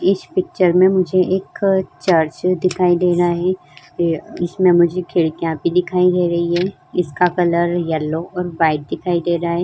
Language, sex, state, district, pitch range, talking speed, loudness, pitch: Hindi, female, Uttar Pradesh, Jyotiba Phule Nagar, 170-185 Hz, 175 wpm, -17 LUFS, 175 Hz